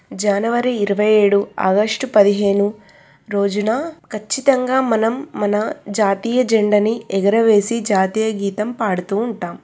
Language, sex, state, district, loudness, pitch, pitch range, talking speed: Telugu, female, Telangana, Nalgonda, -17 LUFS, 210 Hz, 200-230 Hz, 100 wpm